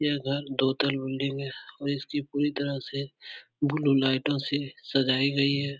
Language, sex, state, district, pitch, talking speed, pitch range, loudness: Hindi, male, Uttar Pradesh, Etah, 140 Hz, 165 wpm, 135-140 Hz, -28 LUFS